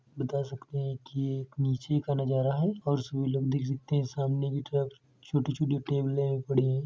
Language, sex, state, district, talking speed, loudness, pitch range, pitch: Hindi, male, Uttar Pradesh, Etah, 220 wpm, -31 LUFS, 135-140 Hz, 135 Hz